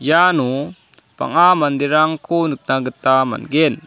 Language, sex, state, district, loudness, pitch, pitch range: Garo, male, Meghalaya, South Garo Hills, -16 LUFS, 150 Hz, 135-165 Hz